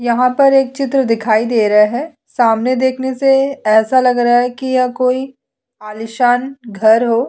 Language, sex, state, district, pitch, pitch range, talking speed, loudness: Hindi, female, Chhattisgarh, Sukma, 250 Hz, 230-260 Hz, 190 wpm, -14 LUFS